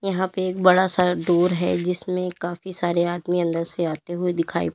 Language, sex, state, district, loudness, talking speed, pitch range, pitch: Hindi, female, Uttar Pradesh, Lalitpur, -22 LUFS, 200 wpm, 175-185 Hz, 175 Hz